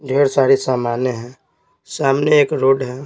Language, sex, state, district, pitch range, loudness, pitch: Hindi, male, Bihar, Patna, 130-140 Hz, -16 LUFS, 135 Hz